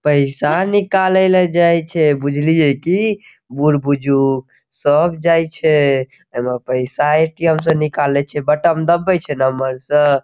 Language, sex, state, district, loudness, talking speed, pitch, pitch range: Maithili, male, Bihar, Saharsa, -15 LUFS, 135 wpm, 150 Hz, 140-170 Hz